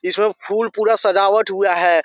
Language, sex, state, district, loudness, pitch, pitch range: Hindi, male, Jharkhand, Sahebganj, -17 LUFS, 200 Hz, 185-215 Hz